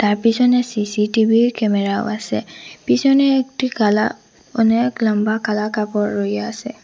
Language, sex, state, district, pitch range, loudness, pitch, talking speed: Bengali, female, Assam, Hailakandi, 210-245 Hz, -18 LUFS, 220 Hz, 115 wpm